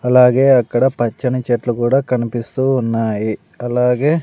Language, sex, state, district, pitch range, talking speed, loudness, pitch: Telugu, male, Andhra Pradesh, Sri Satya Sai, 120-130 Hz, 130 wpm, -16 LUFS, 125 Hz